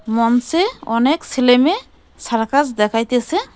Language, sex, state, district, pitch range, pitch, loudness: Bengali, female, West Bengal, Cooch Behar, 230-310 Hz, 245 Hz, -17 LUFS